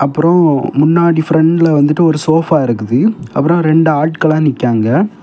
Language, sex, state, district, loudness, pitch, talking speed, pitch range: Tamil, male, Tamil Nadu, Kanyakumari, -11 LUFS, 160 Hz, 125 wpm, 145-165 Hz